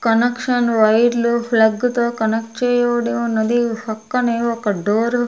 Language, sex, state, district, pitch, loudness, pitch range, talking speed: Telugu, female, Andhra Pradesh, Sri Satya Sai, 235 Hz, -18 LUFS, 225-240 Hz, 125 wpm